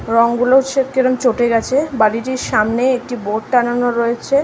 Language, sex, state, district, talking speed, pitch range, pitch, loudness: Bengali, female, West Bengal, North 24 Parganas, 160 wpm, 230-260 Hz, 245 Hz, -16 LUFS